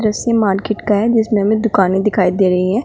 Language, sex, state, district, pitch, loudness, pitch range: Hindi, female, Uttar Pradesh, Shamli, 210 Hz, -15 LUFS, 190-220 Hz